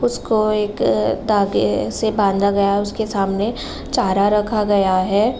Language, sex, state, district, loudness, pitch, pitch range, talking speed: Hindi, female, Uttar Pradesh, Gorakhpur, -18 LUFS, 205 Hz, 195-215 Hz, 145 wpm